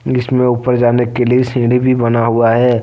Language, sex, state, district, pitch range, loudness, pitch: Hindi, male, Jharkhand, Deoghar, 120-125 Hz, -13 LUFS, 120 Hz